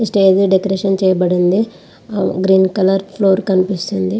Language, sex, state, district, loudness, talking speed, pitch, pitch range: Telugu, female, Andhra Pradesh, Visakhapatnam, -14 LUFS, 115 wpm, 190 Hz, 190-195 Hz